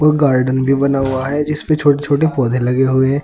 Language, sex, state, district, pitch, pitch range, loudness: Hindi, male, Uttar Pradesh, Saharanpur, 135 Hz, 130-150 Hz, -15 LUFS